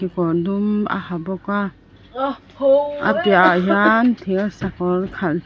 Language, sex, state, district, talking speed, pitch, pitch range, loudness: Mizo, female, Mizoram, Aizawl, 120 wpm, 195 Hz, 180-215 Hz, -19 LUFS